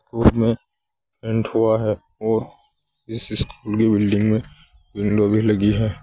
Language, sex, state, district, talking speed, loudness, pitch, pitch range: Hindi, male, Uttar Pradesh, Saharanpur, 140 wpm, -20 LUFS, 110 Hz, 105-110 Hz